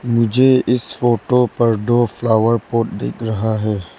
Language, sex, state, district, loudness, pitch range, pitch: Hindi, female, Arunachal Pradesh, Lower Dibang Valley, -16 LUFS, 110-120 Hz, 115 Hz